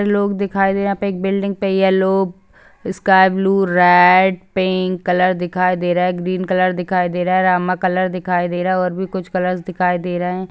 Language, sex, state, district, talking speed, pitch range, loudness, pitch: Hindi, female, Bihar, Gaya, 210 wpm, 180-190 Hz, -16 LUFS, 185 Hz